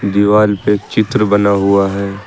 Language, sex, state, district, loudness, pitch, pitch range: Hindi, male, Uttar Pradesh, Lucknow, -13 LUFS, 100 Hz, 100-105 Hz